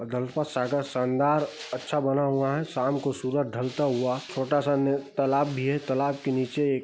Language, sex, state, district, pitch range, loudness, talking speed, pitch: Hindi, male, Chhattisgarh, Bastar, 130-145 Hz, -27 LUFS, 185 wpm, 140 Hz